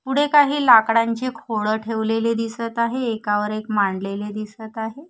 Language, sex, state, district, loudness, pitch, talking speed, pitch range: Marathi, female, Maharashtra, Gondia, -20 LUFS, 225 Hz, 140 wpm, 215-235 Hz